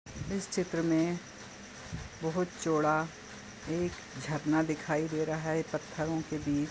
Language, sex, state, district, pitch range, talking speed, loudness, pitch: Hindi, male, Goa, North and South Goa, 150-165 Hz, 125 wpm, -33 LUFS, 155 Hz